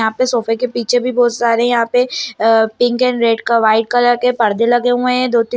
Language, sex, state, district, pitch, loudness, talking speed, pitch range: Hindi, female, Bihar, Lakhisarai, 240 Hz, -14 LUFS, 260 wpm, 230-245 Hz